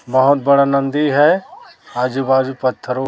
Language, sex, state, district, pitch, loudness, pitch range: Hindi, male, Chhattisgarh, Raipur, 135 Hz, -15 LUFS, 130-140 Hz